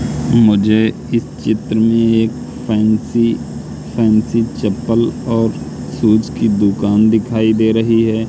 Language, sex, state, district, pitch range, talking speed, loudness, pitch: Hindi, male, Madhya Pradesh, Katni, 110-115 Hz, 115 wpm, -14 LUFS, 110 Hz